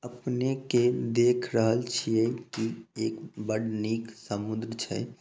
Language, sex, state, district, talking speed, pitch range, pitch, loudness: Maithili, male, Bihar, Samastipur, 125 wpm, 110-120 Hz, 115 Hz, -29 LUFS